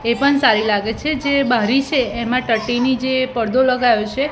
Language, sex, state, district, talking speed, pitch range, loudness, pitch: Gujarati, female, Gujarat, Gandhinagar, 195 wpm, 230-270 Hz, -17 LUFS, 255 Hz